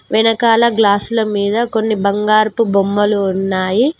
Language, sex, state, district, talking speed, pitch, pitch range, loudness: Telugu, female, Telangana, Mahabubabad, 105 wpm, 215 Hz, 200-225 Hz, -14 LUFS